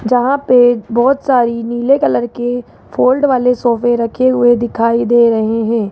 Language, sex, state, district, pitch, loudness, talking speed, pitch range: Hindi, male, Rajasthan, Jaipur, 240 Hz, -13 LUFS, 160 wpm, 235-250 Hz